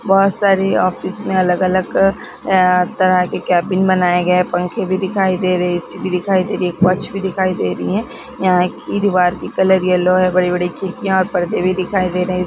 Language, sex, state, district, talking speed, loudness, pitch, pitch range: Hindi, female, Bihar, Vaishali, 210 wpm, -16 LUFS, 185 Hz, 180-190 Hz